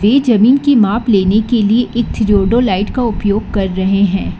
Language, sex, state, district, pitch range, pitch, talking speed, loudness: Hindi, female, Karnataka, Bangalore, 200-235 Hz, 215 Hz, 190 wpm, -13 LUFS